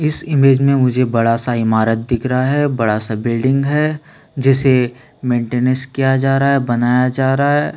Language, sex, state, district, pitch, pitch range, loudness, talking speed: Hindi, male, Chhattisgarh, Sukma, 130 Hz, 120-140 Hz, -15 LUFS, 170 wpm